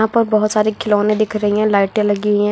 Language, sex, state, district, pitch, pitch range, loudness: Hindi, female, Uttar Pradesh, Lucknow, 210 Hz, 205-215 Hz, -16 LUFS